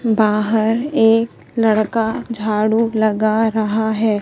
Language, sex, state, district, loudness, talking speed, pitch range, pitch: Hindi, female, Madhya Pradesh, Katni, -17 LUFS, 100 wpm, 215-225 Hz, 220 Hz